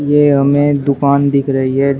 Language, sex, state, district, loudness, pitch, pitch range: Hindi, male, Uttar Pradesh, Shamli, -13 LUFS, 140 Hz, 140-145 Hz